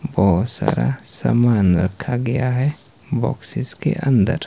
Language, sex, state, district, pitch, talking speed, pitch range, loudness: Hindi, male, Himachal Pradesh, Shimla, 120 Hz, 120 wpm, 95-130 Hz, -19 LUFS